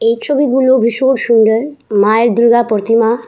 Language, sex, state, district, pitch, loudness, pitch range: Bengali, female, West Bengal, Purulia, 235 Hz, -12 LUFS, 225-260 Hz